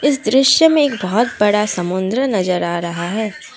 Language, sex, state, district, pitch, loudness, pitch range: Hindi, female, Assam, Kamrup Metropolitan, 210 Hz, -16 LUFS, 185-265 Hz